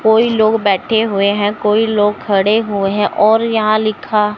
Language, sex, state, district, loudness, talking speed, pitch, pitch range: Hindi, male, Chandigarh, Chandigarh, -14 LUFS, 180 wpm, 215 Hz, 205-220 Hz